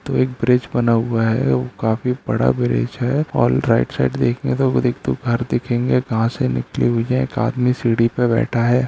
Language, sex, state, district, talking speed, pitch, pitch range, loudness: Hindi, male, Bihar, Araria, 200 wpm, 120 Hz, 115-125 Hz, -18 LUFS